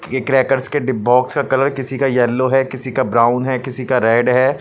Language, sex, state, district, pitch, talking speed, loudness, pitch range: Hindi, male, Punjab, Pathankot, 130 Hz, 245 wpm, -16 LUFS, 125-135 Hz